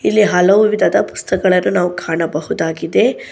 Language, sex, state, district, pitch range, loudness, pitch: Kannada, female, Karnataka, Bangalore, 165-195 Hz, -15 LUFS, 180 Hz